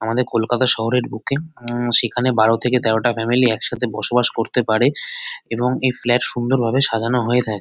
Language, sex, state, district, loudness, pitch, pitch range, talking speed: Bengali, male, West Bengal, North 24 Parganas, -18 LUFS, 120 Hz, 115-125 Hz, 165 wpm